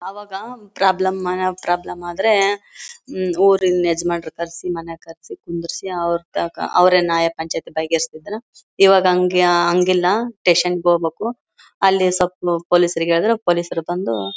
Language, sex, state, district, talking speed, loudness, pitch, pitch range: Kannada, female, Karnataka, Bellary, 140 wpm, -18 LUFS, 180 Hz, 170-190 Hz